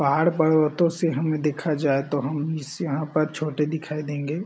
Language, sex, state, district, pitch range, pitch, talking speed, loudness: Hindi, male, Chhattisgarh, Balrampur, 150-160 Hz, 155 Hz, 190 wpm, -24 LUFS